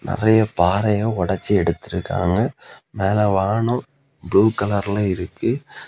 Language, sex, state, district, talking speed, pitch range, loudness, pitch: Tamil, male, Tamil Nadu, Kanyakumari, 90 wpm, 95-110 Hz, -20 LUFS, 105 Hz